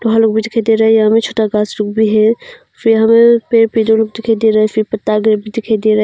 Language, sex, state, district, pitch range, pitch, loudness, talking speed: Hindi, female, Arunachal Pradesh, Longding, 215-225 Hz, 220 Hz, -12 LUFS, 200 wpm